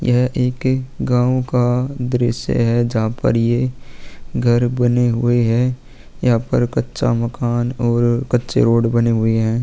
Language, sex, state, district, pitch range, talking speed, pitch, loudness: Hindi, male, Maharashtra, Aurangabad, 120-125 Hz, 145 wpm, 120 Hz, -17 LUFS